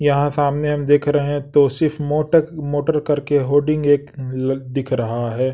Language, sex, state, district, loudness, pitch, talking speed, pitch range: Hindi, male, Bihar, West Champaran, -18 LUFS, 145 Hz, 160 wpm, 140-150 Hz